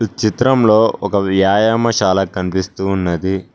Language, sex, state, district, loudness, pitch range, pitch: Telugu, male, Telangana, Mahabubabad, -15 LUFS, 95-110 Hz, 95 Hz